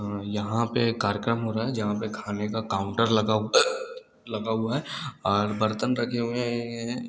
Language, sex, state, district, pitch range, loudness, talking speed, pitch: Hindi, male, Uttar Pradesh, Varanasi, 105-120 Hz, -27 LUFS, 170 wpm, 115 Hz